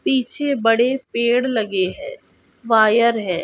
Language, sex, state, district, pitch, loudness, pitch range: Hindi, female, Chhattisgarh, Balrampur, 235 Hz, -18 LUFS, 220-260 Hz